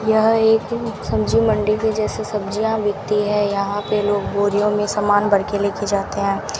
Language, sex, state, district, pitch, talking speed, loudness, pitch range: Hindi, female, Rajasthan, Bikaner, 205 Hz, 190 wpm, -19 LUFS, 200-215 Hz